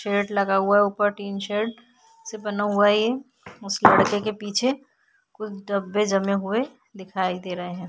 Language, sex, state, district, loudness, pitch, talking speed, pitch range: Hindi, female, Bihar, Vaishali, -23 LUFS, 205 Hz, 185 wpm, 200-230 Hz